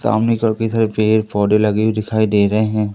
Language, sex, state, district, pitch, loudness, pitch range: Hindi, male, Madhya Pradesh, Katni, 110 Hz, -16 LUFS, 105-110 Hz